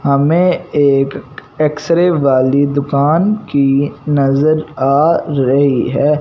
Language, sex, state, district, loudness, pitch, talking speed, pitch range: Hindi, male, Punjab, Fazilka, -13 LUFS, 145 Hz, 105 wpm, 140-155 Hz